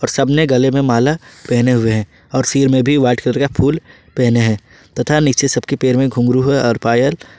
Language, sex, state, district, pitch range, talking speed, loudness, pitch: Hindi, male, Jharkhand, Ranchi, 120-140 Hz, 220 wpm, -15 LUFS, 130 Hz